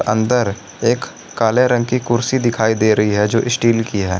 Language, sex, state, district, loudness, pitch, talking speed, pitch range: Hindi, male, Jharkhand, Garhwa, -16 LUFS, 115 Hz, 200 wpm, 105-120 Hz